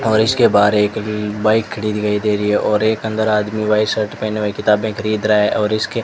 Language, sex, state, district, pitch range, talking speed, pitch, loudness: Hindi, male, Rajasthan, Bikaner, 105-110 Hz, 250 wpm, 105 Hz, -16 LUFS